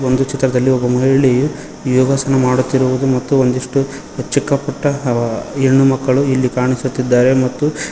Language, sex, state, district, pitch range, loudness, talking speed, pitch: Kannada, male, Karnataka, Koppal, 130-135 Hz, -15 LUFS, 120 wpm, 130 Hz